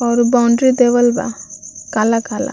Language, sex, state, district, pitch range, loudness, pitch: Bhojpuri, female, Bihar, Gopalganj, 235-250 Hz, -14 LUFS, 240 Hz